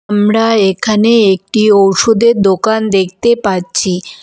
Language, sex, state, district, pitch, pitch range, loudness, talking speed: Bengali, female, West Bengal, Alipurduar, 210 Hz, 195-225 Hz, -11 LUFS, 100 wpm